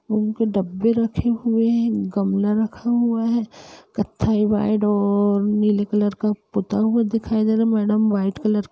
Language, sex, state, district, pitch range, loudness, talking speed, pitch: Hindi, male, Uttar Pradesh, Budaun, 205-225 Hz, -20 LUFS, 165 wpm, 215 Hz